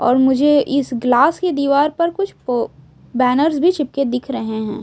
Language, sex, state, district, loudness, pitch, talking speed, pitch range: Hindi, female, Odisha, Sambalpur, -17 LUFS, 275 Hz, 185 wpm, 245-300 Hz